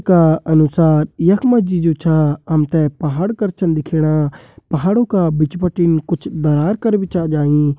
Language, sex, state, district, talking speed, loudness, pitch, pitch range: Kumaoni, male, Uttarakhand, Uttarkashi, 160 wpm, -16 LUFS, 165 Hz, 155-180 Hz